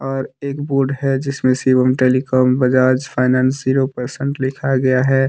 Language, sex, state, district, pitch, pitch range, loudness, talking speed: Hindi, male, Jharkhand, Deoghar, 130 Hz, 130-135 Hz, -17 LUFS, 160 wpm